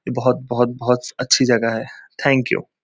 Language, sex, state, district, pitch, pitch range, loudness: Hindi, male, West Bengal, Kolkata, 125 Hz, 120-130 Hz, -19 LUFS